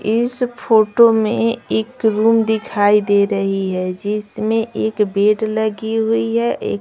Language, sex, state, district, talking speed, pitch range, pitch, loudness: Hindi, female, Bihar, Patna, 130 wpm, 205-225 Hz, 215 Hz, -17 LUFS